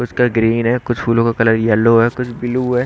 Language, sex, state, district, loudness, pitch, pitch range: Hindi, male, Haryana, Rohtak, -15 LUFS, 115 Hz, 115-125 Hz